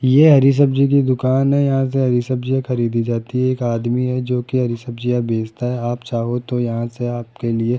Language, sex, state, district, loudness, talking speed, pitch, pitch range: Hindi, male, Rajasthan, Jaipur, -18 LUFS, 230 wpm, 125 Hz, 120-130 Hz